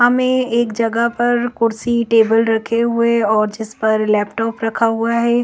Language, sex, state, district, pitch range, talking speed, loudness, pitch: Hindi, female, Chandigarh, Chandigarh, 225-235 Hz, 165 wpm, -16 LUFS, 230 Hz